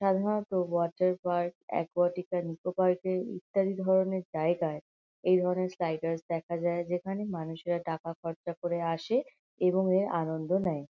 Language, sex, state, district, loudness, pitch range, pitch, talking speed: Bengali, female, West Bengal, North 24 Parganas, -31 LUFS, 170-185 Hz, 175 Hz, 140 wpm